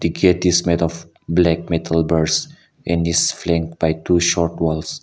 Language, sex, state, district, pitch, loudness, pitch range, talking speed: English, male, Nagaland, Kohima, 85 Hz, -18 LUFS, 80-85 Hz, 155 wpm